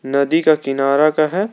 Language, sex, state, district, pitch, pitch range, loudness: Hindi, male, Jharkhand, Garhwa, 150 Hz, 140-160 Hz, -16 LUFS